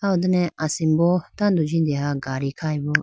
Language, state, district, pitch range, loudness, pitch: Idu Mishmi, Arunachal Pradesh, Lower Dibang Valley, 145-180 Hz, -22 LUFS, 160 Hz